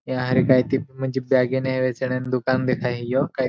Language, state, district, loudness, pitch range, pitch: Bhili, Maharashtra, Dhule, -22 LUFS, 125-130 Hz, 130 Hz